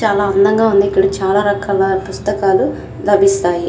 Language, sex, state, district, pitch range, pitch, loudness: Telugu, female, Andhra Pradesh, Krishna, 195-205 Hz, 200 Hz, -14 LUFS